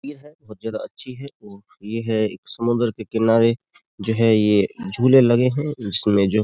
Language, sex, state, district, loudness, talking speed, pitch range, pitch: Hindi, male, Uttar Pradesh, Jyotiba Phule Nagar, -20 LUFS, 185 wpm, 105-125 Hz, 115 Hz